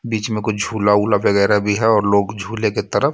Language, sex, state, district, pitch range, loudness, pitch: Hindi, male, Jharkhand, Ranchi, 105-110 Hz, -17 LUFS, 105 Hz